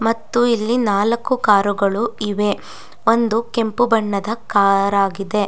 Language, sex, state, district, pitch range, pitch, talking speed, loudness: Kannada, female, Karnataka, Dakshina Kannada, 200-230 Hz, 215 Hz, 120 wpm, -18 LUFS